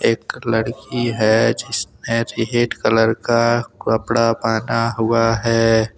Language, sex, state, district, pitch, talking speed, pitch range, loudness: Hindi, male, Jharkhand, Deoghar, 115 Hz, 110 wpm, 110-115 Hz, -18 LUFS